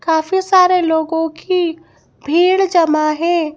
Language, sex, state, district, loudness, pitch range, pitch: Hindi, female, Madhya Pradesh, Bhopal, -15 LUFS, 320-365 Hz, 335 Hz